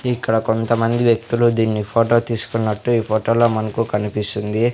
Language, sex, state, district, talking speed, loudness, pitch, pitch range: Telugu, male, Andhra Pradesh, Sri Satya Sai, 140 wpm, -18 LUFS, 115 Hz, 110-115 Hz